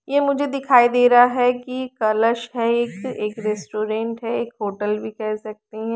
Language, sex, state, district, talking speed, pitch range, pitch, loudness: Hindi, female, Haryana, Rohtak, 190 wpm, 215-245 Hz, 230 Hz, -20 LUFS